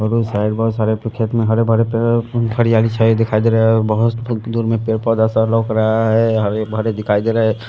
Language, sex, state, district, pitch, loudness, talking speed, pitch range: Hindi, male, Haryana, Rohtak, 115 Hz, -16 LUFS, 220 wpm, 110-115 Hz